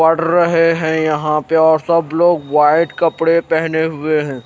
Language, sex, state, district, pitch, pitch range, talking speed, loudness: Hindi, male, Himachal Pradesh, Shimla, 160 Hz, 155-165 Hz, 175 wpm, -14 LUFS